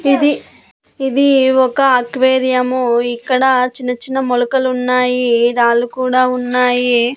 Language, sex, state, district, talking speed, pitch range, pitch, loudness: Telugu, female, Andhra Pradesh, Annamaya, 100 wpm, 245-260 Hz, 255 Hz, -14 LUFS